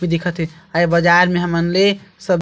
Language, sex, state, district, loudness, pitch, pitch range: Chhattisgarhi, male, Chhattisgarh, Sarguja, -16 LUFS, 175 Hz, 170-180 Hz